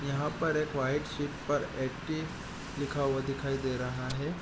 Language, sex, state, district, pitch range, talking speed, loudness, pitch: Hindi, male, Bihar, East Champaran, 135-150 Hz, 175 wpm, -33 LUFS, 140 Hz